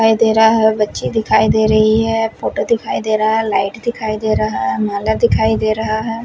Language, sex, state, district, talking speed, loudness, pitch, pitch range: Hindi, male, Punjab, Fazilka, 220 wpm, -15 LUFS, 220 Hz, 215-225 Hz